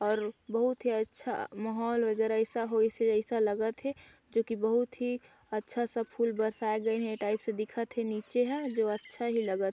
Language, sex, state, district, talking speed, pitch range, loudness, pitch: Chhattisgarhi, female, Chhattisgarh, Sarguja, 190 wpm, 220-235 Hz, -32 LUFS, 225 Hz